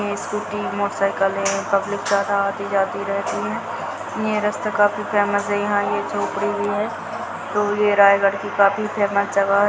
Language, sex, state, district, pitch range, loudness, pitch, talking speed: Hindi, female, Chhattisgarh, Raigarh, 200-205 Hz, -20 LUFS, 200 Hz, 180 wpm